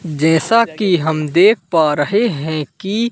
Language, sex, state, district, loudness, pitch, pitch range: Hindi, male, Madhya Pradesh, Katni, -15 LUFS, 170 Hz, 155-210 Hz